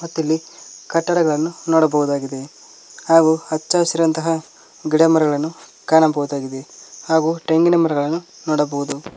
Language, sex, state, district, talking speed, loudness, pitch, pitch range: Kannada, male, Karnataka, Koppal, 90 wpm, -18 LUFS, 160 Hz, 145-165 Hz